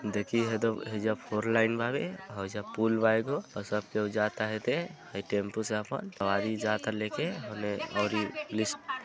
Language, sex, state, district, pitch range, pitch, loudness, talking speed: Bhojpuri, male, Uttar Pradesh, Gorakhpur, 105-115 Hz, 110 Hz, -32 LUFS, 180 wpm